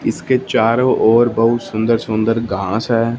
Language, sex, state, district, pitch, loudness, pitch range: Hindi, male, Punjab, Fazilka, 115 Hz, -16 LUFS, 110-120 Hz